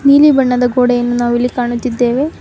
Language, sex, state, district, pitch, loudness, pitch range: Kannada, female, Karnataka, Bangalore, 245 Hz, -13 LUFS, 240-265 Hz